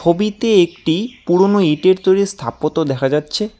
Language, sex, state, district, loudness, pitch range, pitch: Bengali, male, West Bengal, Alipurduar, -16 LUFS, 155-200 Hz, 185 Hz